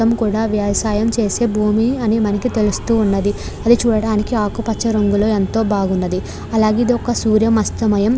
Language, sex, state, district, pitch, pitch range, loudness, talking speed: Telugu, female, Andhra Pradesh, Krishna, 220 Hz, 210-230 Hz, -17 LUFS, 160 wpm